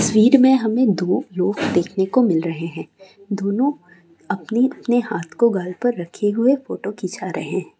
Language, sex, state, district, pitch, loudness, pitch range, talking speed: Hindi, female, Bihar, Saran, 200 Hz, -19 LUFS, 180-240 Hz, 185 wpm